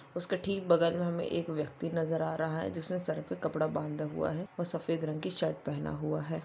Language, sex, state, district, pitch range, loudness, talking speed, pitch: Hindi, female, Jharkhand, Jamtara, 155-170 Hz, -34 LUFS, 240 wpm, 165 Hz